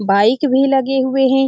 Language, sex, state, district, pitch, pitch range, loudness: Hindi, female, Bihar, Saran, 265 Hz, 260-270 Hz, -15 LUFS